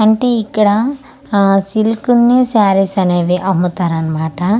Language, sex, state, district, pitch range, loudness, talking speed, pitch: Telugu, female, Andhra Pradesh, Manyam, 180-225 Hz, -13 LUFS, 105 wpm, 205 Hz